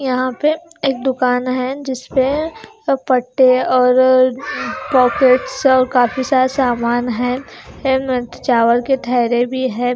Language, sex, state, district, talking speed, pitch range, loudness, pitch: Hindi, female, Haryana, Charkhi Dadri, 125 wpm, 250-265 Hz, -16 LUFS, 255 Hz